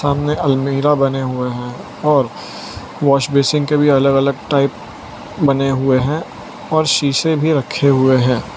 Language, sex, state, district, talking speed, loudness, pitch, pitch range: Hindi, male, Gujarat, Valsad, 155 wpm, -15 LUFS, 140 Hz, 135-150 Hz